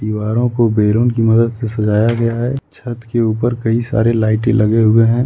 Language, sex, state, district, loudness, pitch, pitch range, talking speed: Hindi, male, Jharkhand, Ranchi, -15 LUFS, 115 Hz, 110-120 Hz, 205 wpm